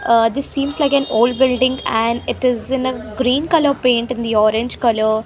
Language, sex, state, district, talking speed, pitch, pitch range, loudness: English, female, Haryana, Rohtak, 230 wpm, 250 Hz, 230-265 Hz, -17 LUFS